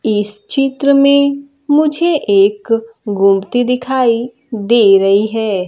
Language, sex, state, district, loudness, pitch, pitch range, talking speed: Hindi, female, Bihar, Kaimur, -13 LUFS, 235 Hz, 205-280 Hz, 105 wpm